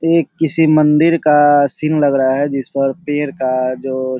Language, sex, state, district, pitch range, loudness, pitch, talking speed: Hindi, male, Bihar, Sitamarhi, 135-155 Hz, -14 LUFS, 145 Hz, 200 wpm